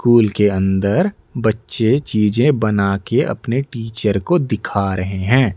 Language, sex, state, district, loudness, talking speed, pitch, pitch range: Hindi, male, Odisha, Nuapada, -17 LUFS, 140 wpm, 110 Hz, 100-125 Hz